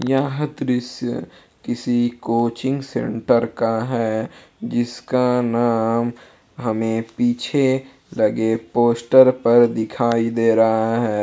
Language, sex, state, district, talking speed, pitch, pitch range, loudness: Hindi, male, Jharkhand, Palamu, 95 wpm, 120 Hz, 115-125 Hz, -19 LUFS